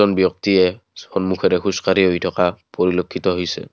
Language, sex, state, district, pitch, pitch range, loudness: Assamese, male, Assam, Kamrup Metropolitan, 95 Hz, 90-95 Hz, -19 LUFS